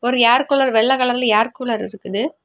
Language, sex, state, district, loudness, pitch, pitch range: Tamil, female, Tamil Nadu, Kanyakumari, -17 LUFS, 245 Hz, 230-255 Hz